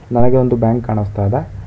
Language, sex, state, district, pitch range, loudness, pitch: Kannada, male, Karnataka, Bangalore, 100-125 Hz, -15 LUFS, 115 Hz